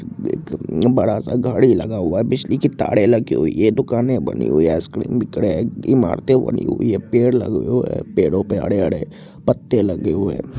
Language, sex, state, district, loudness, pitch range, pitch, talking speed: Hindi, male, Bihar, Purnia, -18 LUFS, 120-130 Hz, 125 Hz, 205 wpm